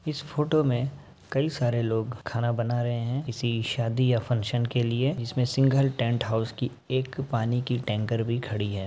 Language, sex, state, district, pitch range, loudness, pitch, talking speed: Hindi, male, Uttar Pradesh, Ghazipur, 115-130 Hz, -27 LUFS, 120 Hz, 190 wpm